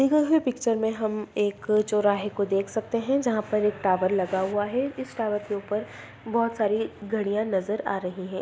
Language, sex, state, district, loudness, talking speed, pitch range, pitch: Hindi, female, Bihar, Madhepura, -26 LUFS, 215 wpm, 200-230 Hz, 210 Hz